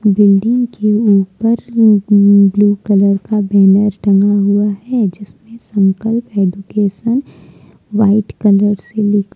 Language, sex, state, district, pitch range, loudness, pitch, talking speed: Hindi, female, Jharkhand, Deoghar, 200-215 Hz, -13 LUFS, 205 Hz, 110 wpm